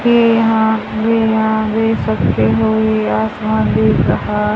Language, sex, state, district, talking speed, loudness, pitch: Hindi, female, Haryana, Jhajjar, 160 wpm, -14 LUFS, 210 Hz